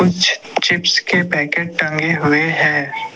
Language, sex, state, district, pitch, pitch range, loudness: Hindi, male, Assam, Kamrup Metropolitan, 170 Hz, 155-180 Hz, -15 LUFS